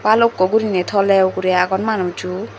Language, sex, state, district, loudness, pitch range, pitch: Chakma, female, Tripura, Dhalai, -17 LUFS, 185-215 Hz, 190 Hz